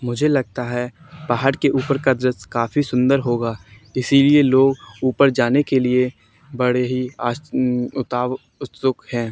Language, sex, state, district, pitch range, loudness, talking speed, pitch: Hindi, male, Haryana, Charkhi Dadri, 120-135 Hz, -19 LUFS, 160 wpm, 125 Hz